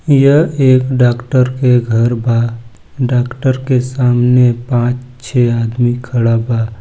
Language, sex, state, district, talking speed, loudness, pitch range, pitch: Hindi, male, Chhattisgarh, Balrampur, 125 wpm, -13 LUFS, 120-130 Hz, 125 Hz